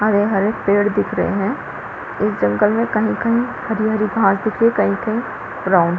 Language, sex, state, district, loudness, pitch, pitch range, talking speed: Hindi, female, Chhattisgarh, Balrampur, -18 LUFS, 215 Hz, 200-220 Hz, 210 wpm